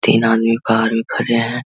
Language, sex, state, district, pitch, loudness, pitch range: Hindi, male, Bihar, Vaishali, 115 Hz, -16 LUFS, 115-120 Hz